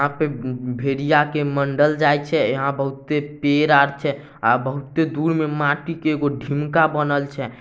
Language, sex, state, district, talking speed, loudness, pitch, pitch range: Maithili, male, Bihar, Samastipur, 160 wpm, -20 LUFS, 145 Hz, 140-150 Hz